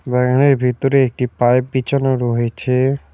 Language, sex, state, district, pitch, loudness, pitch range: Bengali, male, West Bengal, Cooch Behar, 125 Hz, -16 LUFS, 125-135 Hz